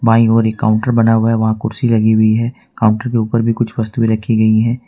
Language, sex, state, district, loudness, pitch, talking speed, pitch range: Hindi, male, Jharkhand, Ranchi, -14 LUFS, 115 Hz, 260 wpm, 110-115 Hz